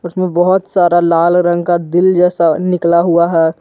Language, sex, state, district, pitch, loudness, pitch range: Hindi, male, Jharkhand, Garhwa, 175 Hz, -12 LUFS, 170-180 Hz